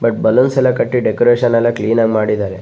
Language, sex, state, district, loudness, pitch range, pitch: Kannada, male, Karnataka, Bellary, -14 LUFS, 110-120 Hz, 115 Hz